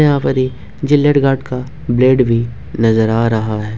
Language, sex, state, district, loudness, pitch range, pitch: Hindi, male, Jharkhand, Ranchi, -14 LUFS, 115-135 Hz, 125 Hz